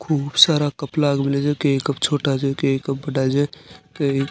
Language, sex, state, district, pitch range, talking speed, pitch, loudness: Marwari, male, Rajasthan, Nagaur, 135-145 Hz, 220 wpm, 140 Hz, -20 LUFS